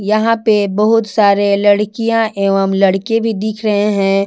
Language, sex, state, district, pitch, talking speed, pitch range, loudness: Hindi, female, Jharkhand, Ranchi, 210 Hz, 155 wpm, 200-220 Hz, -13 LUFS